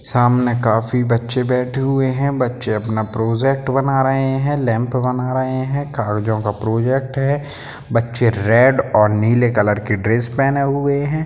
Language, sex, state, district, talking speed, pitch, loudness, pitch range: Hindi, male, Bihar, Sitamarhi, 155 wpm, 125 Hz, -17 LUFS, 115-135 Hz